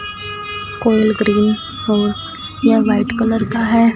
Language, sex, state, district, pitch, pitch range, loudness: Hindi, female, Punjab, Fazilka, 230 Hz, 215-235 Hz, -16 LUFS